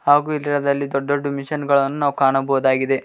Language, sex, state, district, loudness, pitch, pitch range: Kannada, male, Karnataka, Koppal, -19 LUFS, 140 Hz, 135-145 Hz